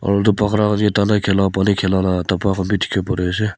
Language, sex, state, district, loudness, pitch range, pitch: Nagamese, male, Nagaland, Kohima, -17 LUFS, 95-105 Hz, 100 Hz